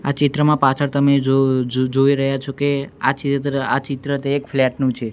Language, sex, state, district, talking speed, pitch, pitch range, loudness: Gujarati, male, Gujarat, Gandhinagar, 200 wpm, 140 Hz, 135-140 Hz, -18 LUFS